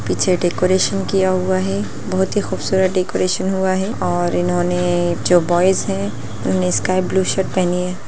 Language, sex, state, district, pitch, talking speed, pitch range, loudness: Hindi, female, Bihar, Lakhisarai, 185 Hz, 165 wpm, 175-190 Hz, -18 LUFS